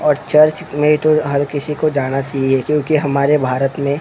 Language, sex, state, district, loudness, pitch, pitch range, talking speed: Hindi, male, Maharashtra, Mumbai Suburban, -15 LUFS, 145 Hz, 140-150 Hz, 195 wpm